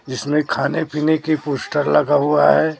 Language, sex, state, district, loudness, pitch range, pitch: Hindi, male, Chhattisgarh, Raipur, -18 LUFS, 145-155 Hz, 150 Hz